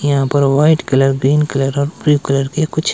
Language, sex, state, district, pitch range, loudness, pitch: Hindi, male, Himachal Pradesh, Shimla, 135-150 Hz, -14 LUFS, 140 Hz